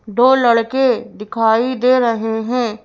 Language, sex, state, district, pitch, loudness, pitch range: Hindi, female, Madhya Pradesh, Bhopal, 235 Hz, -15 LUFS, 225-250 Hz